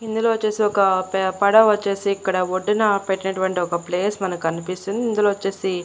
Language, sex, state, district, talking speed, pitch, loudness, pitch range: Telugu, female, Andhra Pradesh, Annamaya, 155 wpm, 195 Hz, -20 LUFS, 185-210 Hz